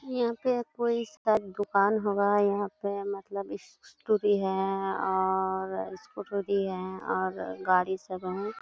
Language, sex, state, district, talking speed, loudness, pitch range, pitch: Hindi, female, Bihar, Kishanganj, 140 wpm, -29 LUFS, 190-210 Hz, 200 Hz